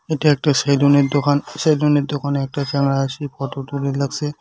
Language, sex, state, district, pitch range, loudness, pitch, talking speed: Bengali, male, West Bengal, Cooch Behar, 140-145 Hz, -19 LUFS, 145 Hz, 190 wpm